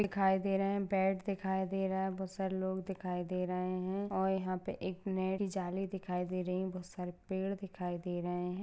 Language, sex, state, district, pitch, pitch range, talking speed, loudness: Hindi, female, Maharashtra, Sindhudurg, 190 Hz, 180-195 Hz, 230 wpm, -36 LUFS